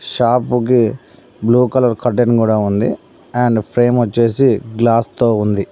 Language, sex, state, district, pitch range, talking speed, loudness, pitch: Telugu, male, Telangana, Mahabubabad, 110-125 Hz, 125 wpm, -15 LUFS, 120 Hz